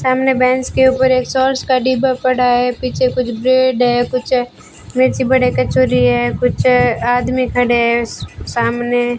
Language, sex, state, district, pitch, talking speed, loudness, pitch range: Hindi, female, Rajasthan, Bikaner, 250 Hz, 165 wpm, -14 LUFS, 240-255 Hz